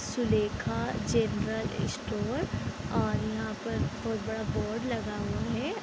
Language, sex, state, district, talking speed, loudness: Hindi, female, Bihar, Sitamarhi, 135 wpm, -32 LUFS